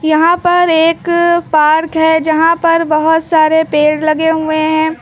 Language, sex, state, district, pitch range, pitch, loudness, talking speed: Hindi, female, Uttar Pradesh, Lucknow, 315-335 Hz, 320 Hz, -11 LUFS, 155 wpm